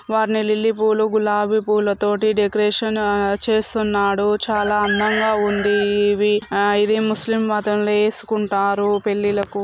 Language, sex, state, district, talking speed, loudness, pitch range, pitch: Telugu, female, Telangana, Nalgonda, 120 wpm, -18 LUFS, 205-215 Hz, 210 Hz